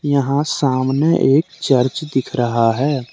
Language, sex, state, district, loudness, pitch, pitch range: Hindi, male, Jharkhand, Deoghar, -17 LUFS, 140 Hz, 130-145 Hz